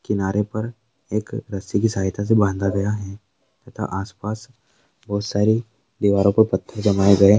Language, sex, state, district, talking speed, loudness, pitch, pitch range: Hindi, male, Bihar, Sitamarhi, 155 wpm, -21 LUFS, 105 Hz, 100-110 Hz